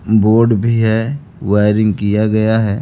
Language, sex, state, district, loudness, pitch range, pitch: Hindi, male, Bihar, Kaimur, -14 LUFS, 105-115 Hz, 110 Hz